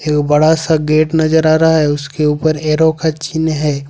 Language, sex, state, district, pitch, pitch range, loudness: Hindi, male, Jharkhand, Ranchi, 155 Hz, 150-160 Hz, -13 LUFS